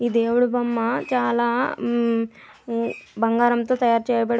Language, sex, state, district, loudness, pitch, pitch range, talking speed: Telugu, female, Andhra Pradesh, Visakhapatnam, -22 LUFS, 235 Hz, 230-240 Hz, 120 wpm